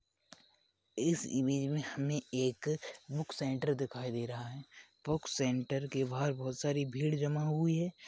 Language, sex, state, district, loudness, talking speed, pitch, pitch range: Hindi, male, Maharashtra, Chandrapur, -36 LUFS, 155 wpm, 140 Hz, 130-150 Hz